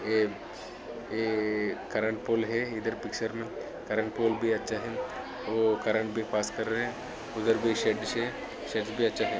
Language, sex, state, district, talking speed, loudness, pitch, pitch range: Hindi, male, Maharashtra, Solapur, 140 wpm, -31 LUFS, 110 Hz, 110-115 Hz